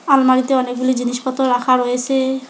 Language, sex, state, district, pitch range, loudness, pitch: Bengali, female, West Bengal, Alipurduar, 250-265 Hz, -16 LUFS, 255 Hz